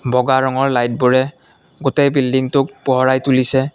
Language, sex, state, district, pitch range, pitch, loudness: Assamese, male, Assam, Kamrup Metropolitan, 130-135 Hz, 130 Hz, -16 LUFS